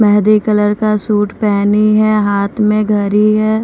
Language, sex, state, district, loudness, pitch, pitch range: Hindi, female, Maharashtra, Mumbai Suburban, -12 LUFS, 210 Hz, 205-215 Hz